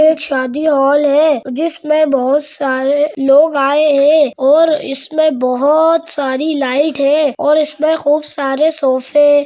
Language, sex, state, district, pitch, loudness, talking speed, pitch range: Hindi, female, Bihar, Muzaffarpur, 290 Hz, -13 LUFS, 140 wpm, 275-310 Hz